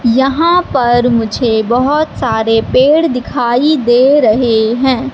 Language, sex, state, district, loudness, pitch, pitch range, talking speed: Hindi, female, Madhya Pradesh, Katni, -11 LUFS, 250 Hz, 235-275 Hz, 115 wpm